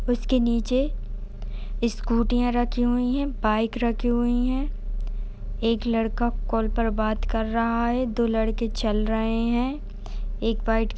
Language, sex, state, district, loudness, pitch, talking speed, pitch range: Hindi, female, Uttar Pradesh, Etah, -25 LUFS, 230 Hz, 140 wpm, 225-245 Hz